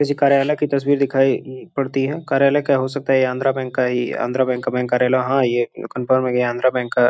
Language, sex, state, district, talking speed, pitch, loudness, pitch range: Hindi, male, Uttar Pradesh, Gorakhpur, 270 wpm, 130 Hz, -19 LUFS, 125-140 Hz